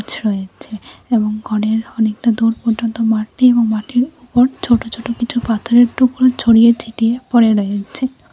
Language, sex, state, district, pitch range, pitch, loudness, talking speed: Bengali, female, Tripura, West Tripura, 220-245 Hz, 230 Hz, -15 LUFS, 130 wpm